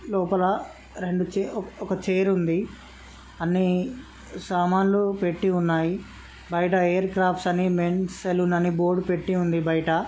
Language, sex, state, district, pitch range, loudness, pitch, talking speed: Telugu, male, Andhra Pradesh, Srikakulam, 175-190 Hz, -24 LUFS, 180 Hz, 145 wpm